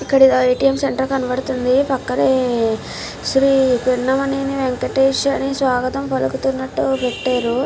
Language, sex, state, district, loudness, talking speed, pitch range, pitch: Telugu, female, Andhra Pradesh, Krishna, -18 LUFS, 85 wpm, 250-270 Hz, 260 Hz